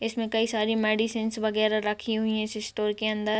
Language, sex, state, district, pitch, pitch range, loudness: Hindi, female, Bihar, Sitamarhi, 215 Hz, 215-225 Hz, -27 LUFS